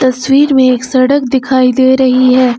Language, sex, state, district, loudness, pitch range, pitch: Hindi, female, Uttar Pradesh, Lucknow, -9 LUFS, 255-265 Hz, 260 Hz